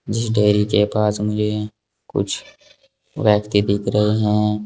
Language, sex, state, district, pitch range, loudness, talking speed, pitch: Hindi, male, Uttar Pradesh, Saharanpur, 105-110 Hz, -19 LUFS, 130 wpm, 105 Hz